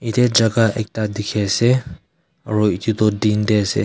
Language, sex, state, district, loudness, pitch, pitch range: Nagamese, male, Nagaland, Kohima, -18 LUFS, 110 Hz, 105-115 Hz